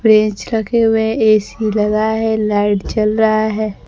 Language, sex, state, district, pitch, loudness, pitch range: Hindi, female, Bihar, Kaimur, 215 Hz, -15 LUFS, 215-220 Hz